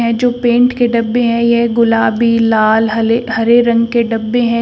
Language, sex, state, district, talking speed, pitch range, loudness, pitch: Hindi, female, Uttar Pradesh, Shamli, 180 wpm, 225-240 Hz, -12 LUFS, 235 Hz